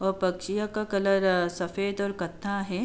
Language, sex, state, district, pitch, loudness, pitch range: Hindi, female, Uttar Pradesh, Jalaun, 195 Hz, -28 LUFS, 180-200 Hz